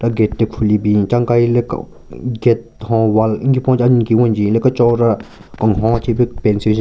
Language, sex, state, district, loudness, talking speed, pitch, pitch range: Rengma, male, Nagaland, Kohima, -15 LUFS, 195 wpm, 115 Hz, 110-120 Hz